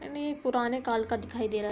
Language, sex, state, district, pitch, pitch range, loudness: Hindi, female, Uttar Pradesh, Budaun, 240 Hz, 225-255 Hz, -31 LUFS